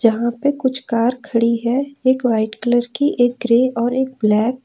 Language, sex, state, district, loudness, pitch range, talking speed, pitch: Hindi, female, Jharkhand, Ranchi, -18 LUFS, 230-260 Hz, 205 wpm, 240 Hz